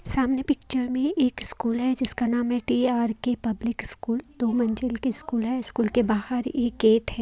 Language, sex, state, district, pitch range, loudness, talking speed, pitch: Hindi, female, Haryana, Jhajjar, 230-255 Hz, -23 LUFS, 190 wpm, 245 Hz